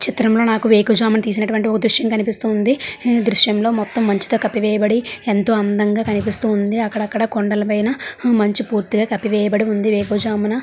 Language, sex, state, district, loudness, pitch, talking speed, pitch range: Telugu, female, Andhra Pradesh, Srikakulam, -17 LUFS, 220 Hz, 160 wpm, 210-225 Hz